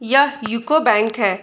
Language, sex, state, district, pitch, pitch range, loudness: Hindi, female, Uttar Pradesh, Budaun, 230 Hz, 215-275 Hz, -17 LUFS